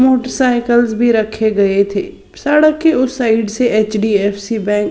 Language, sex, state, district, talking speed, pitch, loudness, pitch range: Hindi, female, Odisha, Sambalpur, 160 wpm, 225 Hz, -14 LUFS, 210-255 Hz